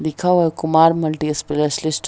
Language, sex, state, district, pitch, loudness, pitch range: Hindi, female, Bihar, Jahanabad, 155 Hz, -17 LUFS, 155-165 Hz